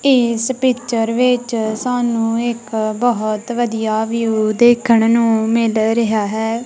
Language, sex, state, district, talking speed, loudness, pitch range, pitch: Punjabi, female, Punjab, Kapurthala, 115 wpm, -16 LUFS, 220-240 Hz, 230 Hz